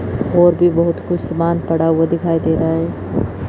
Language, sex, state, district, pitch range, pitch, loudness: Hindi, female, Chandigarh, Chandigarh, 110-170 Hz, 165 Hz, -16 LUFS